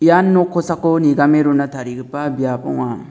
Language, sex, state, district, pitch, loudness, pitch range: Garo, male, Meghalaya, South Garo Hills, 145 Hz, -16 LUFS, 140-170 Hz